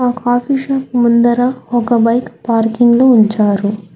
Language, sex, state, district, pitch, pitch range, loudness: Telugu, female, Telangana, Hyderabad, 240 Hz, 230-250 Hz, -13 LUFS